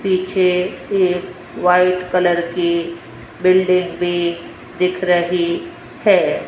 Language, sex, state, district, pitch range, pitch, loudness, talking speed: Hindi, female, Rajasthan, Jaipur, 175-185 Hz, 180 Hz, -17 LUFS, 90 wpm